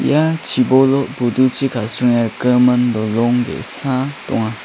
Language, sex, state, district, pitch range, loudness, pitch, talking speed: Garo, male, Meghalaya, South Garo Hills, 120-135 Hz, -16 LUFS, 125 Hz, 105 wpm